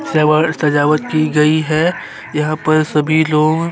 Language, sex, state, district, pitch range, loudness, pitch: Hindi, male, Chhattisgarh, Sukma, 150-155 Hz, -14 LUFS, 155 Hz